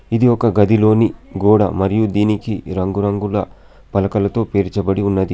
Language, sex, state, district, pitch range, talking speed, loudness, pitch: Telugu, male, Telangana, Adilabad, 100-110 Hz, 110 wpm, -16 LUFS, 100 Hz